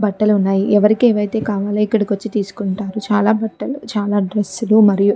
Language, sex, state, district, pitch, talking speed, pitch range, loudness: Telugu, female, Andhra Pradesh, Chittoor, 210 Hz, 175 wpm, 205-215 Hz, -17 LUFS